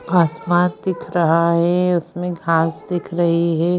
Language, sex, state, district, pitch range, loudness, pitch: Hindi, female, Bihar, Madhepura, 165-180 Hz, -18 LUFS, 170 Hz